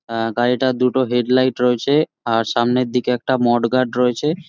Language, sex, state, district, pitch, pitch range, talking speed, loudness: Bengali, male, West Bengal, Jhargram, 125 Hz, 120-130 Hz, 185 wpm, -18 LUFS